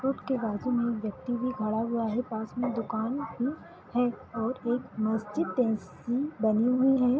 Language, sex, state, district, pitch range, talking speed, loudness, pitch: Hindi, female, Jharkhand, Sahebganj, 220-250 Hz, 165 wpm, -30 LUFS, 235 Hz